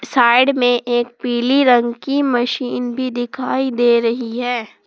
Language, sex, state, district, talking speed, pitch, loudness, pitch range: Hindi, female, Jharkhand, Palamu, 150 wpm, 245 Hz, -17 LUFS, 240-255 Hz